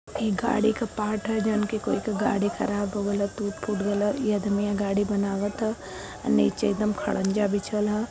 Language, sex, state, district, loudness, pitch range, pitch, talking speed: Bhojpuri, female, Uttar Pradesh, Varanasi, -26 LUFS, 205-215 Hz, 205 Hz, 200 wpm